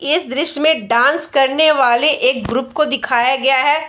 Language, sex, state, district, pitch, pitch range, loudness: Hindi, female, Bihar, Darbhanga, 280 Hz, 255-305 Hz, -14 LUFS